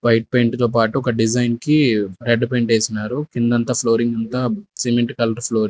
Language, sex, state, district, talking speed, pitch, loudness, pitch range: Telugu, male, Andhra Pradesh, Sri Satya Sai, 190 wpm, 120 Hz, -18 LUFS, 115-125 Hz